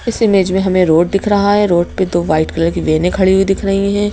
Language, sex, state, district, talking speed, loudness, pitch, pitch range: Hindi, female, Madhya Pradesh, Bhopal, 290 wpm, -13 LUFS, 190 Hz, 175-200 Hz